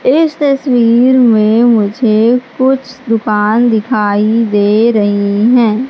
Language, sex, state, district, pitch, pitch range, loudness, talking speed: Hindi, female, Madhya Pradesh, Katni, 230 Hz, 215-250 Hz, -10 LUFS, 100 wpm